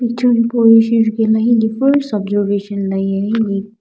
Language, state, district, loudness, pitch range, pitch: Sumi, Nagaland, Dimapur, -14 LUFS, 200-230 Hz, 220 Hz